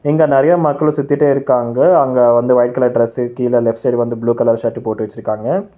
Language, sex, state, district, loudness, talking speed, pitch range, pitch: Tamil, male, Tamil Nadu, Chennai, -14 LUFS, 195 wpm, 120-145 Hz, 125 Hz